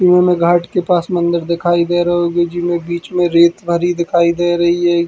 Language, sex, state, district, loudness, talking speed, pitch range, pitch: Bundeli, male, Uttar Pradesh, Hamirpur, -14 LUFS, 215 wpm, 170-175 Hz, 175 Hz